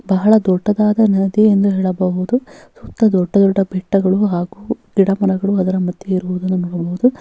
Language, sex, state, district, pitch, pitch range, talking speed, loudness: Kannada, female, Karnataka, Bellary, 195 Hz, 185-210 Hz, 140 wpm, -16 LUFS